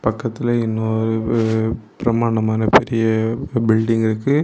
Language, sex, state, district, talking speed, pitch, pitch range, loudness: Tamil, male, Tamil Nadu, Kanyakumari, 80 wpm, 115 Hz, 110-115 Hz, -18 LUFS